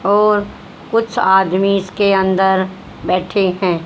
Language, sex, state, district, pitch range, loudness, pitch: Hindi, female, Haryana, Rohtak, 185-205 Hz, -15 LUFS, 190 Hz